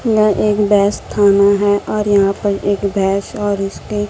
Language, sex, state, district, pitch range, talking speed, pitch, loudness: Hindi, female, Chhattisgarh, Raipur, 200-210 Hz, 175 wpm, 205 Hz, -15 LUFS